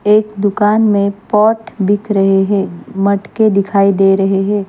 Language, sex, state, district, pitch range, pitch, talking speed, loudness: Hindi, female, Maharashtra, Mumbai Suburban, 195-210 Hz, 200 Hz, 155 wpm, -13 LUFS